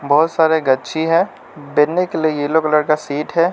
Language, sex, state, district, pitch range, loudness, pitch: Hindi, male, Arunachal Pradesh, Lower Dibang Valley, 150-165 Hz, -17 LUFS, 155 Hz